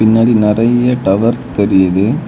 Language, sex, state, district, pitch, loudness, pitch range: Tamil, male, Tamil Nadu, Kanyakumari, 110 Hz, -12 LUFS, 100-120 Hz